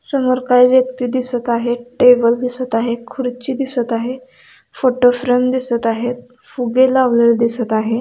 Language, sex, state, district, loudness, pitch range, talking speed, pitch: Marathi, female, Maharashtra, Sindhudurg, -15 LUFS, 235-255 Hz, 135 wpm, 245 Hz